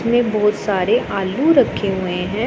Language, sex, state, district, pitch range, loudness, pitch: Hindi, female, Punjab, Pathankot, 195-240 Hz, -17 LUFS, 210 Hz